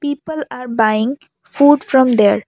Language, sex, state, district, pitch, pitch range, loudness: English, female, Assam, Kamrup Metropolitan, 260 Hz, 220-290 Hz, -15 LUFS